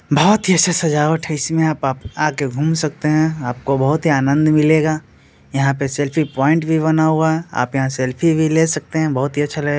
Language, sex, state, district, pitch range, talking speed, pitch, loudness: Hindi, male, Bihar, Muzaffarpur, 140-160 Hz, 220 wpm, 155 Hz, -17 LUFS